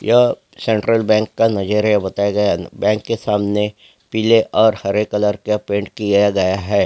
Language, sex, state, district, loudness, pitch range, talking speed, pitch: Hindi, male, Chhattisgarh, Jashpur, -17 LUFS, 100-110 Hz, 175 wpm, 105 Hz